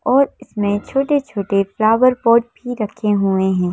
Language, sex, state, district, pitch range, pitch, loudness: Hindi, female, Madhya Pradesh, Bhopal, 200-255 Hz, 220 Hz, -17 LUFS